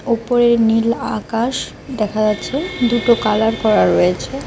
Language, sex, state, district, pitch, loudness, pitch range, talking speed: Bengali, female, West Bengal, Cooch Behar, 230 Hz, -16 LUFS, 215-240 Hz, 120 wpm